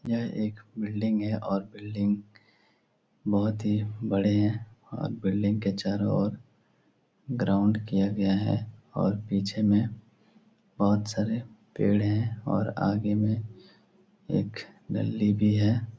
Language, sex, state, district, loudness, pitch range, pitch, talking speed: Hindi, male, Bihar, Supaul, -28 LUFS, 100-110 Hz, 105 Hz, 130 wpm